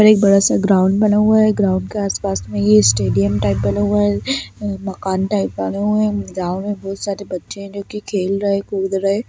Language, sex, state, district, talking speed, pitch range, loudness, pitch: Hindi, female, Bihar, Gaya, 240 wpm, 120-205 Hz, -17 LUFS, 195 Hz